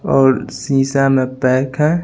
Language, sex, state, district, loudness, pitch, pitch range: Hindi, male, Bihar, Patna, -15 LUFS, 135 Hz, 130-135 Hz